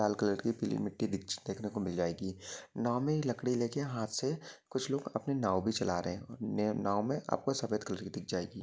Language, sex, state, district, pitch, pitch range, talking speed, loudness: Hindi, male, Maharashtra, Solapur, 110 Hz, 95-125 Hz, 220 wpm, -35 LUFS